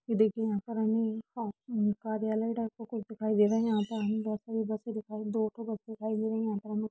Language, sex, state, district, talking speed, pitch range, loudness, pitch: Hindi, female, Uttar Pradesh, Budaun, 285 wpm, 215-225 Hz, -32 LUFS, 220 Hz